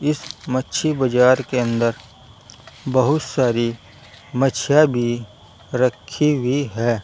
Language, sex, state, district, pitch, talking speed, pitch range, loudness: Hindi, male, Uttar Pradesh, Saharanpur, 125 Hz, 95 wpm, 115-135 Hz, -19 LUFS